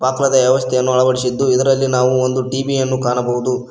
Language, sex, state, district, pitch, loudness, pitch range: Kannada, male, Karnataka, Koppal, 130 Hz, -15 LUFS, 125-130 Hz